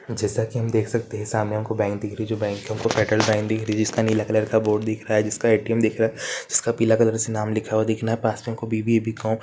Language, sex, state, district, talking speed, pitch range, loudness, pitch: Hindi, male, Jharkhand, Sahebganj, 300 wpm, 110-115 Hz, -23 LUFS, 110 Hz